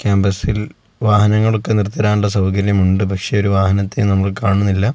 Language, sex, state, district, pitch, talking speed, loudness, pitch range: Malayalam, male, Kerala, Kozhikode, 100 Hz, 145 wpm, -16 LUFS, 100-105 Hz